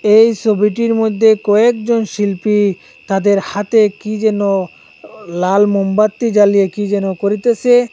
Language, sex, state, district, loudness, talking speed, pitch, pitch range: Bengali, male, Assam, Hailakandi, -14 LUFS, 115 wpm, 210 Hz, 200-220 Hz